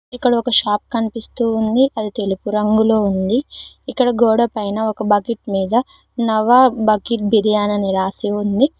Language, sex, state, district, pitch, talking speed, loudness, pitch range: Telugu, female, Telangana, Mahabubabad, 220 Hz, 145 wpm, -17 LUFS, 205-235 Hz